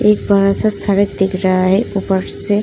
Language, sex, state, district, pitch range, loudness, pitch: Hindi, female, Uttar Pradesh, Muzaffarnagar, 190-205 Hz, -15 LUFS, 195 Hz